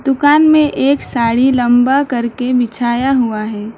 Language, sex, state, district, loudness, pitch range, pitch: Hindi, female, West Bengal, Alipurduar, -13 LUFS, 235-270 Hz, 250 Hz